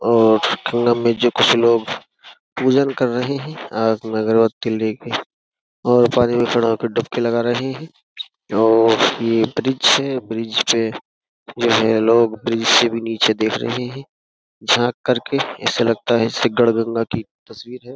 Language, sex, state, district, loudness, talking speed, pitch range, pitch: Hindi, male, Uttar Pradesh, Jyotiba Phule Nagar, -17 LUFS, 165 wpm, 115-120 Hz, 115 Hz